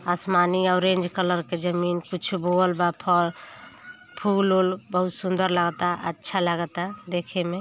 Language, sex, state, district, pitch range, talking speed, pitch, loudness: Hindi, female, Uttar Pradesh, Ghazipur, 175-185 Hz, 160 wpm, 180 Hz, -24 LUFS